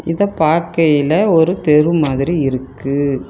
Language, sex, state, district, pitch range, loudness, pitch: Tamil, female, Tamil Nadu, Kanyakumari, 140-165 Hz, -15 LUFS, 155 Hz